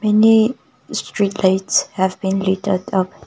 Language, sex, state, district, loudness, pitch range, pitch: English, female, Nagaland, Kohima, -17 LUFS, 190-215 Hz, 195 Hz